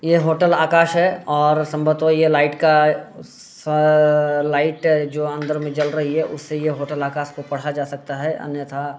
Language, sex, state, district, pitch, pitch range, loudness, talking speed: Hindi, male, Bihar, Muzaffarpur, 150 Hz, 145-155 Hz, -19 LUFS, 195 wpm